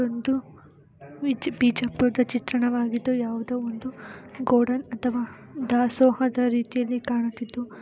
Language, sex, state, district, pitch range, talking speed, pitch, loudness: Kannada, female, Karnataka, Bijapur, 240-255 Hz, 85 wpm, 245 Hz, -25 LUFS